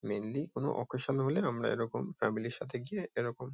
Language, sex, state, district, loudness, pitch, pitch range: Bengali, male, West Bengal, Kolkata, -35 LUFS, 125 Hz, 120-135 Hz